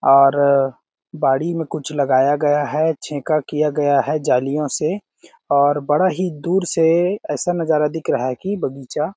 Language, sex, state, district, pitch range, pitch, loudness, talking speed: Hindi, male, Chhattisgarh, Balrampur, 140-165 Hz, 150 Hz, -18 LUFS, 170 wpm